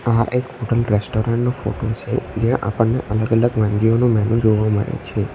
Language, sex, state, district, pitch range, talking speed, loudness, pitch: Gujarati, male, Gujarat, Valsad, 105-120 Hz, 180 wpm, -19 LUFS, 115 Hz